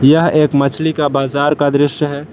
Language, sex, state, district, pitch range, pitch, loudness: Hindi, male, Jharkhand, Palamu, 140-150 Hz, 145 Hz, -14 LUFS